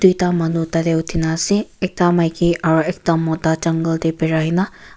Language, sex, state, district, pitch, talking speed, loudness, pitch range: Nagamese, female, Nagaland, Kohima, 165 Hz, 180 wpm, -18 LUFS, 160-175 Hz